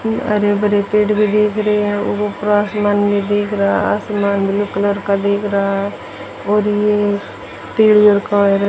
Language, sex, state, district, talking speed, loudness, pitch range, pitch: Hindi, female, Haryana, Charkhi Dadri, 160 wpm, -15 LUFS, 200-210 Hz, 205 Hz